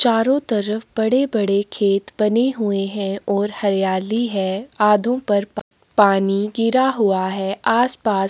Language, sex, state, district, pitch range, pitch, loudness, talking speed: Hindi, female, Chhattisgarh, Sukma, 195-230 Hz, 210 Hz, -19 LUFS, 165 wpm